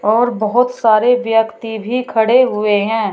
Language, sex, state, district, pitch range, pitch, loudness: Hindi, female, Uttar Pradesh, Shamli, 220-245 Hz, 225 Hz, -14 LUFS